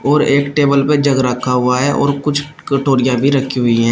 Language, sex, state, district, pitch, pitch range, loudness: Hindi, male, Uttar Pradesh, Shamli, 140 Hz, 125-145 Hz, -14 LUFS